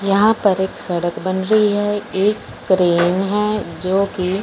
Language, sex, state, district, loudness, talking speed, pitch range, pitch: Hindi, male, Punjab, Fazilka, -17 LUFS, 150 wpm, 185-205 Hz, 195 Hz